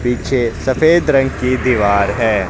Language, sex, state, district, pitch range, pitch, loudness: Hindi, male, Haryana, Jhajjar, 110-135 Hz, 125 Hz, -14 LUFS